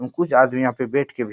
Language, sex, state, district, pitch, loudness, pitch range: Hindi, male, Bihar, Supaul, 130 Hz, -20 LUFS, 125-140 Hz